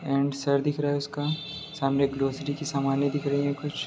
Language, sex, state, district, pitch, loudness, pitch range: Hindi, male, Bihar, Sitamarhi, 140 Hz, -27 LUFS, 140-145 Hz